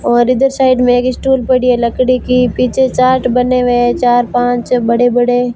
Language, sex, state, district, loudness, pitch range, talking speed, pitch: Hindi, female, Rajasthan, Barmer, -12 LUFS, 245-255 Hz, 195 wpm, 250 Hz